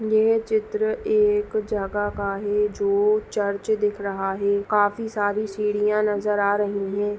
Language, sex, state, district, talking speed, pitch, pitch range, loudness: Hindi, female, Chhattisgarh, Raigarh, 150 wpm, 210 Hz, 200-220 Hz, -23 LUFS